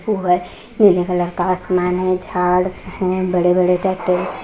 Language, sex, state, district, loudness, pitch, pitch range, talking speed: Hindi, female, Maharashtra, Washim, -17 LUFS, 180 Hz, 180-185 Hz, 150 wpm